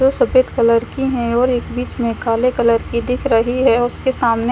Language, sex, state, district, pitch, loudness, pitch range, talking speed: Hindi, female, Chandigarh, Chandigarh, 245 Hz, -16 LUFS, 235-255 Hz, 225 wpm